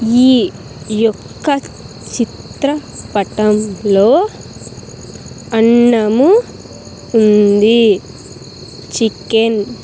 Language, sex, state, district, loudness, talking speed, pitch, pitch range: Telugu, female, Andhra Pradesh, Sri Satya Sai, -13 LUFS, 45 wpm, 225 Hz, 210-240 Hz